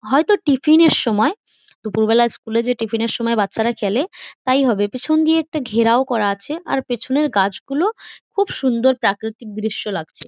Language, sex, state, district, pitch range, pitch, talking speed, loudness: Bengali, female, West Bengal, Jhargram, 220-295 Hz, 245 Hz, 215 wpm, -18 LUFS